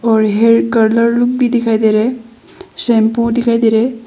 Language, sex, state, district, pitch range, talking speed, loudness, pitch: Hindi, female, Arunachal Pradesh, Longding, 225-240 Hz, 190 wpm, -12 LUFS, 230 Hz